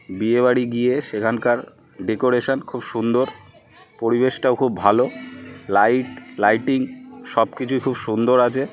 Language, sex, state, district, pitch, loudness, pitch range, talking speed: Bengali, male, West Bengal, North 24 Parganas, 125 Hz, -20 LUFS, 115-130 Hz, 110 wpm